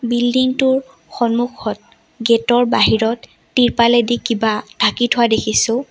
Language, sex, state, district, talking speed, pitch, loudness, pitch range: Assamese, female, Assam, Sonitpur, 110 wpm, 240 Hz, -16 LUFS, 230-245 Hz